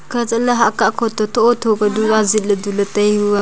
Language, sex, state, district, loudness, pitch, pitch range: Wancho, female, Arunachal Pradesh, Longding, -15 LUFS, 220 Hz, 205-230 Hz